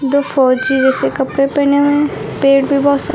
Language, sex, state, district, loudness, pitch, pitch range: Hindi, female, Uttar Pradesh, Lucknow, -13 LUFS, 275 Hz, 270-285 Hz